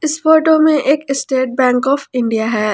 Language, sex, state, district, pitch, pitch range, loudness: Hindi, female, Jharkhand, Ranchi, 275 Hz, 250-305 Hz, -14 LUFS